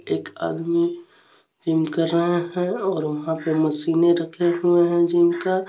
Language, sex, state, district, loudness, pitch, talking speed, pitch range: Hindi, male, Jharkhand, Garhwa, -20 LUFS, 170 Hz, 160 wpm, 165-180 Hz